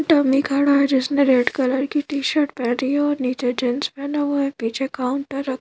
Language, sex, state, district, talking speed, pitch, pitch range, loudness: Hindi, female, Madhya Pradesh, Bhopal, 205 wpm, 275 Hz, 255-285 Hz, -20 LUFS